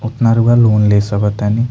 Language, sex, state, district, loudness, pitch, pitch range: Bhojpuri, male, Bihar, Muzaffarpur, -13 LUFS, 110 Hz, 105-115 Hz